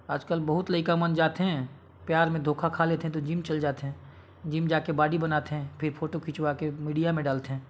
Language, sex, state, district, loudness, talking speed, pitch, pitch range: Chhattisgarhi, male, Chhattisgarh, Sarguja, -28 LUFS, 195 wpm, 155 Hz, 150-165 Hz